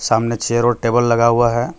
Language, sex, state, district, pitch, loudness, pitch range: Hindi, male, Jharkhand, Deoghar, 120 Hz, -16 LUFS, 115-120 Hz